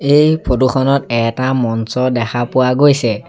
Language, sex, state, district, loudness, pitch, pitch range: Assamese, male, Assam, Sonitpur, -14 LUFS, 130 Hz, 120-135 Hz